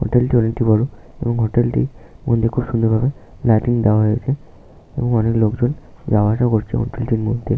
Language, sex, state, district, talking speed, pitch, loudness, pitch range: Bengali, male, West Bengal, Paschim Medinipur, 160 wpm, 115 Hz, -18 LUFS, 110-120 Hz